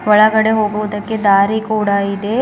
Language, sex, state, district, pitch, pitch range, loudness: Kannada, female, Karnataka, Bidar, 210 Hz, 200-220 Hz, -14 LUFS